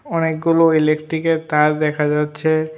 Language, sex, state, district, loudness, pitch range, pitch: Bengali, male, Tripura, West Tripura, -17 LUFS, 150-165 Hz, 155 Hz